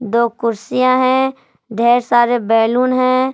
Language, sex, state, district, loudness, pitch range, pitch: Hindi, female, Jharkhand, Palamu, -15 LUFS, 235-255 Hz, 240 Hz